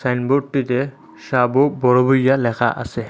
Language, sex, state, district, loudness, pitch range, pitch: Bengali, male, Assam, Hailakandi, -18 LUFS, 125-135 Hz, 125 Hz